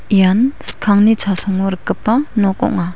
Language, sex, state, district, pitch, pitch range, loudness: Garo, female, Meghalaya, West Garo Hills, 205 Hz, 190-230 Hz, -15 LUFS